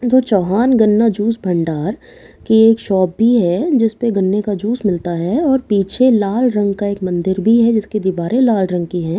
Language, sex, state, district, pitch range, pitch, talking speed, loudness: Hindi, female, Bihar, Katihar, 185-230 Hz, 210 Hz, 210 wpm, -15 LUFS